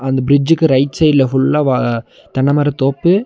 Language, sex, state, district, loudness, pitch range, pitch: Tamil, male, Tamil Nadu, Nilgiris, -14 LUFS, 130-150 Hz, 135 Hz